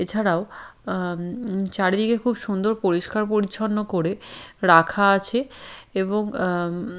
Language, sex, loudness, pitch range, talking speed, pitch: Bengali, female, -22 LUFS, 180-215 Hz, 120 wpm, 200 Hz